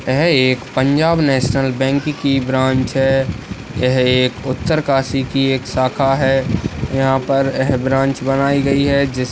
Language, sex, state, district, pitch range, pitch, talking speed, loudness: Hindi, male, Uttarakhand, Uttarkashi, 130-135 Hz, 135 Hz, 155 wpm, -16 LUFS